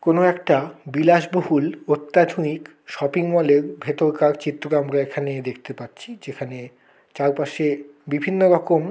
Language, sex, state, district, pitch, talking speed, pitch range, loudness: Bengali, male, West Bengal, Kolkata, 150 Hz, 120 wpm, 145-170 Hz, -21 LUFS